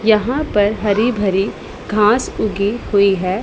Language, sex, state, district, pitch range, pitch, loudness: Hindi, female, Punjab, Pathankot, 200-220 Hz, 210 Hz, -16 LUFS